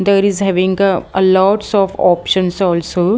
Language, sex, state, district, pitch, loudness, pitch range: English, female, Haryana, Jhajjar, 190 Hz, -14 LUFS, 185-200 Hz